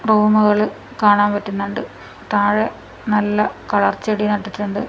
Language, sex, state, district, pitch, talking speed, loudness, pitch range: Malayalam, female, Kerala, Kasaragod, 210 Hz, 100 wpm, -18 LUFS, 205-210 Hz